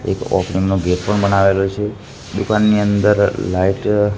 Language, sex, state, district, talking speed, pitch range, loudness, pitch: Gujarati, male, Gujarat, Gandhinagar, 145 wpm, 95-105 Hz, -16 LUFS, 100 Hz